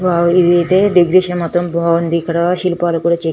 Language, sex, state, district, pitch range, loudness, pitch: Telugu, female, Telangana, Nalgonda, 170-180 Hz, -14 LUFS, 175 Hz